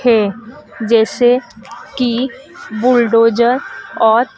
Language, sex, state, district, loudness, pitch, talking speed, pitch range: Hindi, female, Madhya Pradesh, Dhar, -14 LUFS, 235 Hz, 70 wpm, 225-245 Hz